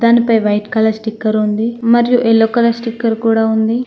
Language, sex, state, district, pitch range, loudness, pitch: Telugu, female, Telangana, Mahabubabad, 220-235 Hz, -14 LUFS, 225 Hz